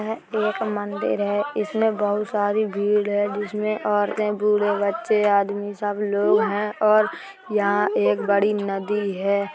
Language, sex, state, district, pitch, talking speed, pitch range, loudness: Hindi, female, Uttar Pradesh, Hamirpur, 205 Hz, 145 wpm, 205-210 Hz, -22 LUFS